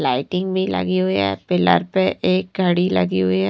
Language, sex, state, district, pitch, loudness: Hindi, female, Bihar, Katihar, 100 Hz, -19 LUFS